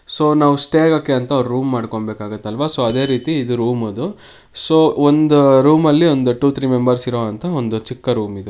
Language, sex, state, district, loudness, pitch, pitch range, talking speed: Kannada, male, Karnataka, Mysore, -16 LUFS, 130 Hz, 120-150 Hz, 175 wpm